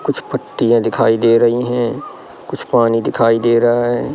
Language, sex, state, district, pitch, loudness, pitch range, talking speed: Hindi, male, Madhya Pradesh, Katni, 120 Hz, -15 LUFS, 115-120 Hz, 175 wpm